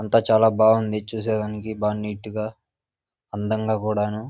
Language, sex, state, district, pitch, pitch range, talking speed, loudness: Telugu, male, Andhra Pradesh, Visakhapatnam, 110 Hz, 105-110 Hz, 125 wpm, -23 LUFS